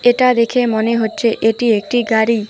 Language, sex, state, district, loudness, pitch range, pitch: Bengali, female, West Bengal, Alipurduar, -15 LUFS, 220-245 Hz, 230 Hz